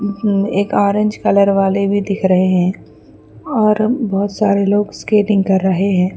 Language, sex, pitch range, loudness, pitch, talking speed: Urdu, female, 195-210 Hz, -15 LUFS, 200 Hz, 155 wpm